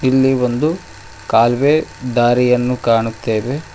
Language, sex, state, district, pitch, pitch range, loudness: Kannada, male, Karnataka, Koppal, 125 Hz, 115-130 Hz, -16 LUFS